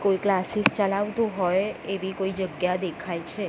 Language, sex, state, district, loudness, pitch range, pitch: Gujarati, female, Gujarat, Gandhinagar, -26 LUFS, 185-200 Hz, 190 Hz